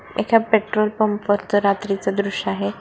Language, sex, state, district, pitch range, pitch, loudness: Marathi, female, Maharashtra, Solapur, 200-215 Hz, 205 Hz, -20 LUFS